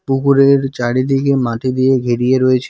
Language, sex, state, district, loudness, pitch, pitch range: Bengali, male, West Bengal, Cooch Behar, -14 LUFS, 130 Hz, 130-135 Hz